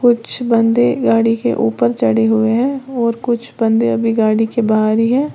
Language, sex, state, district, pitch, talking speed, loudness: Hindi, female, Uttar Pradesh, Lalitpur, 225 Hz, 190 wpm, -15 LUFS